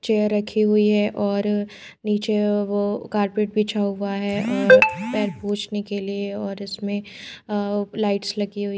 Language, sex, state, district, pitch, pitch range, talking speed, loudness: Hindi, female, Madhya Pradesh, Bhopal, 205 Hz, 200-210 Hz, 150 wpm, -22 LUFS